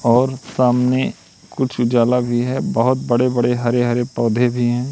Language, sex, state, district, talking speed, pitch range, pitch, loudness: Hindi, male, Madhya Pradesh, Katni, 145 wpm, 120-125 Hz, 120 Hz, -18 LUFS